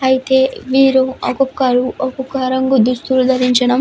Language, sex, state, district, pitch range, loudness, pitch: Telugu, female, Andhra Pradesh, Visakhapatnam, 255-265 Hz, -14 LUFS, 260 Hz